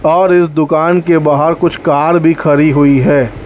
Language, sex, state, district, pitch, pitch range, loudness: Hindi, male, Chhattisgarh, Raipur, 160 Hz, 145-170 Hz, -10 LUFS